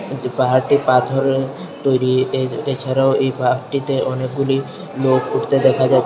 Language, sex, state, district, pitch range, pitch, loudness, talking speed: Bengali, male, Tripura, Unakoti, 130-135 Hz, 135 Hz, -18 LUFS, 150 wpm